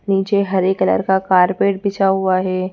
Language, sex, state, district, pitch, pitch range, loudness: Hindi, female, Madhya Pradesh, Bhopal, 190 Hz, 185-195 Hz, -16 LUFS